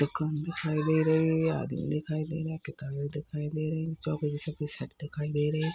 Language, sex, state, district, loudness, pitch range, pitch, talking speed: Hindi, male, Uttar Pradesh, Jalaun, -31 LUFS, 150-160 Hz, 155 Hz, 220 wpm